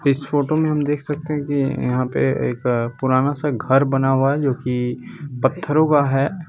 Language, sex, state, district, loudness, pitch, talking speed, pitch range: Hindi, male, Bihar, Bhagalpur, -20 LUFS, 140 Hz, 215 wpm, 130-150 Hz